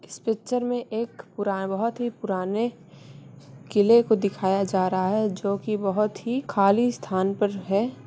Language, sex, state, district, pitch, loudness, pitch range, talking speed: Hindi, female, Bihar, Samastipur, 205 Hz, -25 LUFS, 190-230 Hz, 155 wpm